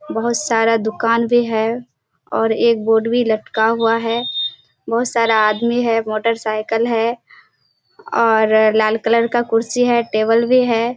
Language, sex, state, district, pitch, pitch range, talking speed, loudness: Hindi, female, Bihar, Kishanganj, 230 Hz, 225-235 Hz, 150 wpm, -16 LUFS